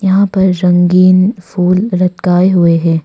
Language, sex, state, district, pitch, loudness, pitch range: Hindi, female, Arunachal Pradesh, Longding, 185 Hz, -10 LUFS, 180-190 Hz